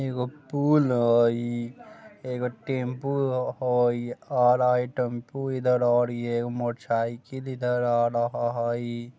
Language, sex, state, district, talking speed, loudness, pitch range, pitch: Bajjika, male, Bihar, Vaishali, 125 wpm, -26 LUFS, 120-130 Hz, 125 Hz